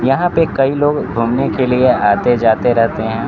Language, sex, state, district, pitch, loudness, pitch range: Hindi, male, Bihar, Kaimur, 125 Hz, -14 LUFS, 115-135 Hz